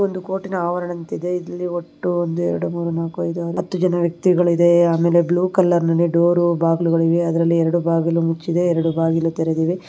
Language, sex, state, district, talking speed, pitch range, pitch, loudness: Kannada, female, Karnataka, Mysore, 310 wpm, 165-175 Hz, 170 Hz, -19 LUFS